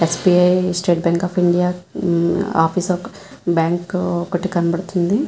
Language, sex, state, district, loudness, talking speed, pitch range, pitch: Telugu, female, Andhra Pradesh, Visakhapatnam, -18 LUFS, 125 wpm, 170-185 Hz, 180 Hz